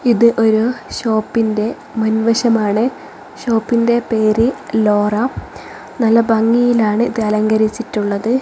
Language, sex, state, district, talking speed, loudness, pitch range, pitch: Malayalam, female, Kerala, Kozhikode, 80 wpm, -15 LUFS, 220-235 Hz, 225 Hz